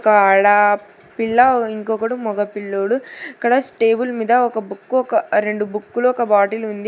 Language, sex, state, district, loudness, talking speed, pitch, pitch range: Telugu, female, Telangana, Hyderabad, -17 LUFS, 140 wpm, 220 Hz, 205-245 Hz